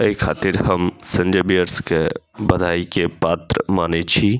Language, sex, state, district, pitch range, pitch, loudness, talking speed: Maithili, male, Bihar, Saharsa, 85-95 Hz, 90 Hz, -19 LUFS, 150 wpm